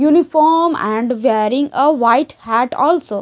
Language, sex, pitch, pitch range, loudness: English, female, 280 Hz, 235-315 Hz, -15 LUFS